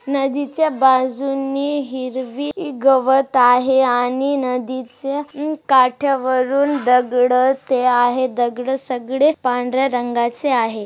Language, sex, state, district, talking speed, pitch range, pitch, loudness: Marathi, female, Maharashtra, Chandrapur, 90 wpm, 250-275 Hz, 260 Hz, -17 LUFS